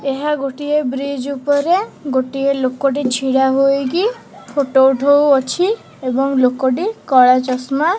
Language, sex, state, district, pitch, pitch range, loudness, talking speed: Odia, female, Odisha, Khordha, 275 Hz, 265-290 Hz, -16 LUFS, 105 wpm